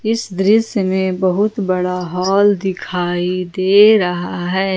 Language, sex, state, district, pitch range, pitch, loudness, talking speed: Hindi, female, Jharkhand, Ranchi, 180-205 Hz, 190 Hz, -16 LUFS, 125 wpm